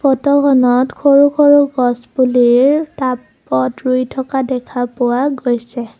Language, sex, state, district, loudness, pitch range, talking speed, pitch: Assamese, female, Assam, Kamrup Metropolitan, -14 LUFS, 245-280 Hz, 100 wpm, 255 Hz